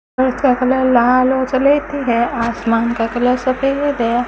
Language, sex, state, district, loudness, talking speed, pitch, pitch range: Hindi, female, Rajasthan, Bikaner, -15 LUFS, 155 wpm, 255 Hz, 235-260 Hz